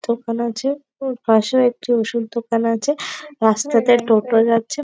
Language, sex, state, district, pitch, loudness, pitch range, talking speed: Bengali, female, West Bengal, Jalpaiguri, 235 Hz, -18 LUFS, 230-265 Hz, 125 wpm